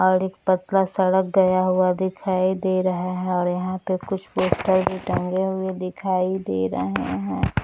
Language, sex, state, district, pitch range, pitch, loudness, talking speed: Hindi, female, Maharashtra, Nagpur, 180-190 Hz, 185 Hz, -22 LUFS, 175 wpm